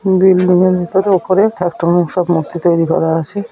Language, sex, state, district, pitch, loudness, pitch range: Bengali, female, West Bengal, Paschim Medinipur, 180 Hz, -13 LUFS, 170-190 Hz